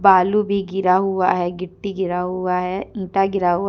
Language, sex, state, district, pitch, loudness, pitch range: Hindi, female, Jharkhand, Deoghar, 185 Hz, -20 LUFS, 180-195 Hz